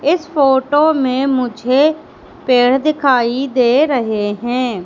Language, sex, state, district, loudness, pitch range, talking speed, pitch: Hindi, female, Madhya Pradesh, Katni, -14 LUFS, 245-290 Hz, 110 wpm, 265 Hz